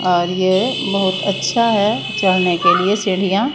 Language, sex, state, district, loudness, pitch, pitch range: Hindi, female, Maharashtra, Mumbai Suburban, -16 LUFS, 195 Hz, 185-210 Hz